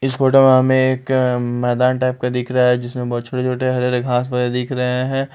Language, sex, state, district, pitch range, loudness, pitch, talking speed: Hindi, male, Punjab, Fazilka, 125-130 Hz, -17 LUFS, 125 Hz, 245 wpm